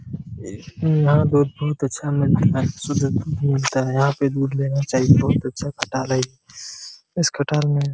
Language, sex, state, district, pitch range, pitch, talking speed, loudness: Hindi, male, Jharkhand, Jamtara, 130-150 Hz, 140 Hz, 175 wpm, -20 LUFS